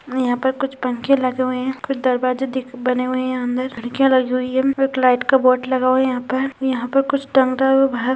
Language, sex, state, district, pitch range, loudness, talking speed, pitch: Hindi, female, Rajasthan, Churu, 255-265 Hz, -19 LUFS, 250 wpm, 255 Hz